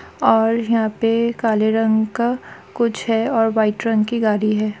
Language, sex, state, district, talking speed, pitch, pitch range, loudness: Hindi, female, Chhattisgarh, Sukma, 175 wpm, 225 Hz, 215-230 Hz, -18 LUFS